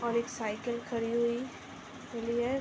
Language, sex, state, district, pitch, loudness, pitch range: Hindi, female, Uttar Pradesh, Ghazipur, 235 Hz, -34 LUFS, 235-240 Hz